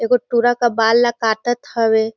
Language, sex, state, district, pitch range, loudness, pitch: Surgujia, female, Chhattisgarh, Sarguja, 225-240 Hz, -17 LUFS, 235 Hz